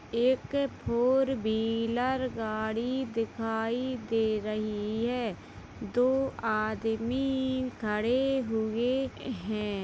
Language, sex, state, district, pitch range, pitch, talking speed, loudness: Hindi, female, Uttar Pradesh, Jalaun, 220-255 Hz, 230 Hz, 80 wpm, -30 LUFS